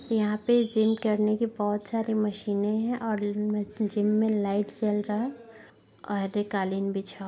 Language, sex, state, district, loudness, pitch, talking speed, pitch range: Hindi, female, Bihar, Sitamarhi, -28 LUFS, 210 Hz, 190 wpm, 205-220 Hz